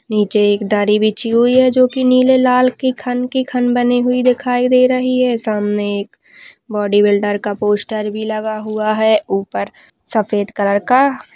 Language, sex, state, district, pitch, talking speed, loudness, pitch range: Hindi, female, Maharashtra, Solapur, 220 Hz, 185 wpm, -15 LUFS, 210-255 Hz